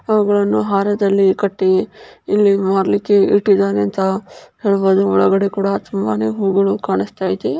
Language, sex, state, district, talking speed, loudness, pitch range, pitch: Kannada, female, Karnataka, Chamarajanagar, 105 wpm, -16 LUFS, 190-200 Hz, 195 Hz